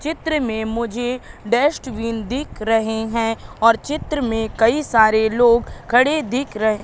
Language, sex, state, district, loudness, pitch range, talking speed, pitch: Hindi, female, Madhya Pradesh, Katni, -19 LUFS, 220-260 Hz, 140 wpm, 235 Hz